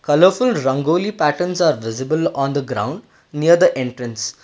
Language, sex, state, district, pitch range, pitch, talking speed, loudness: English, male, Karnataka, Bangalore, 130-175 Hz, 145 Hz, 150 wpm, -18 LUFS